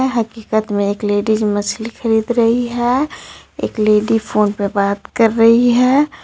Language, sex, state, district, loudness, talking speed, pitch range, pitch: Hindi, female, Jharkhand, Ranchi, -16 LUFS, 155 wpm, 210-240 Hz, 225 Hz